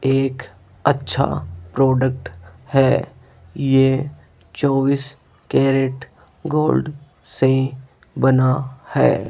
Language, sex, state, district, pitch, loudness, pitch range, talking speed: Hindi, male, Rajasthan, Jaipur, 135 Hz, -19 LUFS, 130-135 Hz, 70 wpm